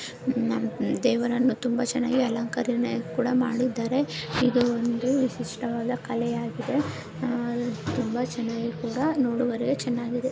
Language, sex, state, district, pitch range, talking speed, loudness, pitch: Kannada, female, Karnataka, Bellary, 235-250 Hz, 100 wpm, -27 LUFS, 245 Hz